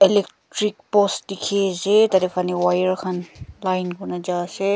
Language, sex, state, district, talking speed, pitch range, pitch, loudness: Nagamese, female, Nagaland, Kohima, 165 wpm, 180-200 Hz, 190 Hz, -21 LUFS